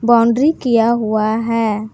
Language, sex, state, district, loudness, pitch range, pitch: Hindi, female, Jharkhand, Palamu, -15 LUFS, 220-235 Hz, 230 Hz